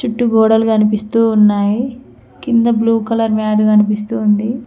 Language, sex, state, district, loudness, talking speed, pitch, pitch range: Telugu, female, Telangana, Mahabubabad, -13 LUFS, 130 wpm, 225 Hz, 215-230 Hz